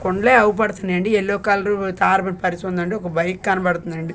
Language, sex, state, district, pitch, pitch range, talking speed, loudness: Telugu, female, Andhra Pradesh, Manyam, 190 Hz, 180-205 Hz, 130 wpm, -19 LUFS